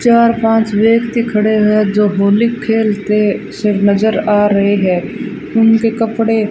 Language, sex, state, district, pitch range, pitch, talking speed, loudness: Hindi, female, Rajasthan, Bikaner, 205-225 Hz, 215 Hz, 150 wpm, -13 LUFS